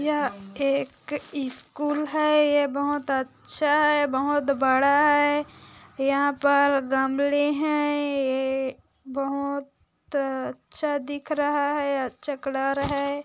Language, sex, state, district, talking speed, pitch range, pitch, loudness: Hindi, female, Chhattisgarh, Korba, 110 wpm, 275-290 Hz, 285 Hz, -24 LUFS